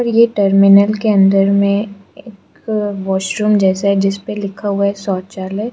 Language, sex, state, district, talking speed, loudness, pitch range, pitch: Hindi, female, Arunachal Pradesh, Lower Dibang Valley, 155 wpm, -14 LUFS, 195-210 Hz, 200 Hz